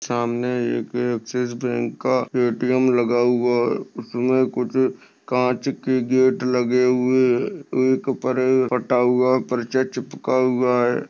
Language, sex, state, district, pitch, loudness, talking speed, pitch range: Hindi, male, Maharashtra, Sindhudurg, 125 Hz, -21 LUFS, 110 wpm, 120-130 Hz